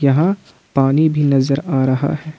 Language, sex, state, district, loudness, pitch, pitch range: Hindi, male, Jharkhand, Ranchi, -16 LUFS, 140 Hz, 135-155 Hz